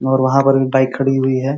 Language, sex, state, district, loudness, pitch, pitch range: Hindi, male, Uttar Pradesh, Ghazipur, -15 LUFS, 130 Hz, 130-135 Hz